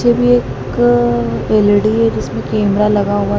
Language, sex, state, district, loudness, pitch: Hindi, female, Madhya Pradesh, Dhar, -14 LUFS, 205 Hz